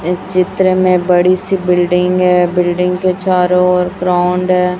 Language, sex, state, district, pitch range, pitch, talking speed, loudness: Hindi, male, Chhattisgarh, Raipur, 180-185 Hz, 180 Hz, 160 wpm, -13 LUFS